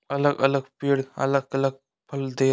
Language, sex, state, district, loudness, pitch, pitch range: Hindi, male, Uttar Pradesh, Ghazipur, -25 LUFS, 135 Hz, 135-140 Hz